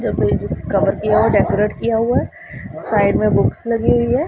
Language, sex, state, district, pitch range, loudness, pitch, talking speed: Hindi, female, Punjab, Pathankot, 225-240 Hz, -17 LUFS, 230 Hz, 195 wpm